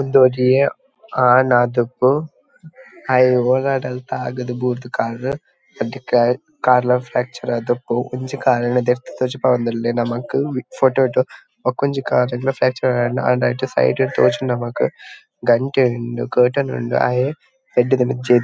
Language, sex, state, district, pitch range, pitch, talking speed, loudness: Tulu, male, Karnataka, Dakshina Kannada, 120-135 Hz, 125 Hz, 135 wpm, -18 LUFS